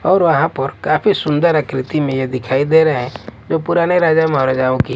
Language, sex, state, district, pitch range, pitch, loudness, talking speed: Hindi, male, Maharashtra, Washim, 130-160 Hz, 150 Hz, -15 LUFS, 205 wpm